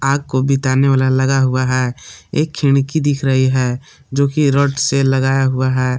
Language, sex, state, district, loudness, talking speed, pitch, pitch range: Hindi, male, Jharkhand, Palamu, -15 LUFS, 190 wpm, 135 Hz, 130-140 Hz